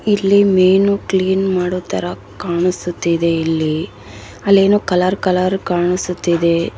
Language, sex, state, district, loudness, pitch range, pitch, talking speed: Kannada, female, Karnataka, Bellary, -16 LUFS, 165-190 Hz, 180 Hz, 105 wpm